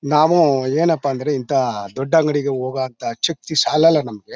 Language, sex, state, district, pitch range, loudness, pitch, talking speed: Kannada, male, Karnataka, Mysore, 130-155 Hz, -18 LUFS, 140 Hz, 135 wpm